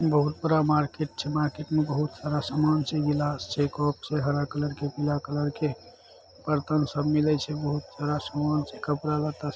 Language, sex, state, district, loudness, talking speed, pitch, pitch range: Maithili, male, Bihar, Saharsa, -27 LUFS, 190 wpm, 150 Hz, 145-150 Hz